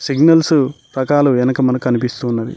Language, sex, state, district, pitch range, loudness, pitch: Telugu, male, Telangana, Mahabubabad, 125-145 Hz, -15 LUFS, 130 Hz